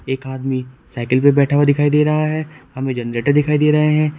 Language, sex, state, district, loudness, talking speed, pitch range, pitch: Hindi, male, Uttar Pradesh, Shamli, -17 LUFS, 230 wpm, 130-150 Hz, 145 Hz